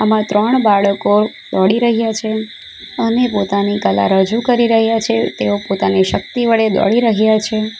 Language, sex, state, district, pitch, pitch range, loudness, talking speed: Gujarati, female, Gujarat, Valsad, 220 Hz, 200-230 Hz, -14 LUFS, 155 wpm